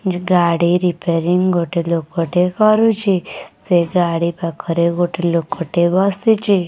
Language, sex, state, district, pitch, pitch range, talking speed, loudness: Odia, female, Odisha, Khordha, 175 Hz, 170-185 Hz, 100 wpm, -16 LUFS